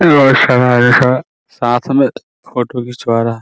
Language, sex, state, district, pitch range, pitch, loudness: Hindi, male, Bihar, Muzaffarpur, 120-135 Hz, 125 Hz, -12 LUFS